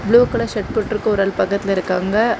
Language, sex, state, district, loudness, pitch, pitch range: Tamil, female, Tamil Nadu, Kanyakumari, -18 LUFS, 215 Hz, 195-230 Hz